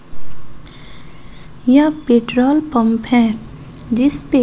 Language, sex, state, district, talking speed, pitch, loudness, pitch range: Hindi, female, Bihar, West Champaran, 70 wpm, 250 Hz, -15 LUFS, 235-280 Hz